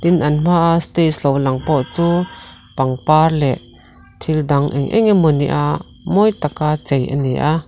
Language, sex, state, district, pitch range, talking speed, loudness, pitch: Mizo, female, Mizoram, Aizawl, 135-165 Hz, 165 wpm, -16 LUFS, 150 Hz